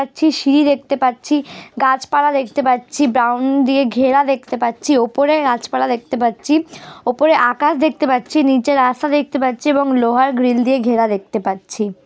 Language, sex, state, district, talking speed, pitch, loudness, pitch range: Bengali, female, West Bengal, Dakshin Dinajpur, 165 wpm, 265 Hz, -16 LUFS, 245-285 Hz